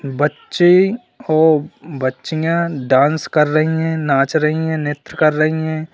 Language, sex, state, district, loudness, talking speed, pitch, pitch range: Hindi, male, Uttar Pradesh, Lalitpur, -16 LUFS, 140 wpm, 155 Hz, 145-160 Hz